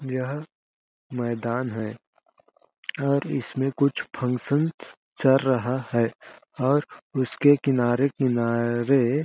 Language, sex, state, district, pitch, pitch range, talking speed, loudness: Hindi, male, Chhattisgarh, Balrampur, 130 Hz, 120-140 Hz, 90 wpm, -24 LUFS